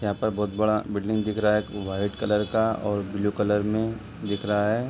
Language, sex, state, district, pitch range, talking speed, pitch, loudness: Hindi, male, Uttar Pradesh, Deoria, 105-110 Hz, 230 wpm, 105 Hz, -26 LUFS